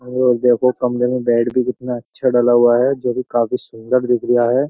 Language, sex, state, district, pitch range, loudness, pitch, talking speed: Hindi, male, Uttar Pradesh, Jyotiba Phule Nagar, 120-125 Hz, -17 LUFS, 125 Hz, 230 wpm